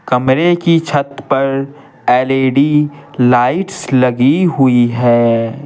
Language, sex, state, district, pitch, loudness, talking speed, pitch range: Hindi, male, Bihar, Patna, 135 Hz, -13 LUFS, 95 wpm, 125-150 Hz